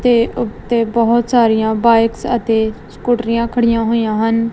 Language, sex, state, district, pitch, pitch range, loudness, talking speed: Punjabi, female, Punjab, Kapurthala, 230 Hz, 225-235 Hz, -15 LUFS, 130 wpm